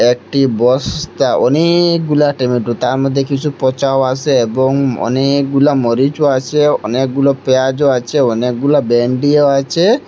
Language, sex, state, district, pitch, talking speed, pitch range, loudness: Bengali, male, Assam, Hailakandi, 135 Hz, 115 wpm, 125-145 Hz, -13 LUFS